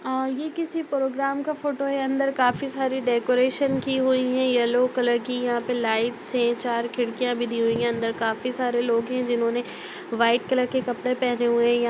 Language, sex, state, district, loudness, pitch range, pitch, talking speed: Hindi, female, Bihar, Darbhanga, -24 LUFS, 235-265 Hz, 250 Hz, 210 wpm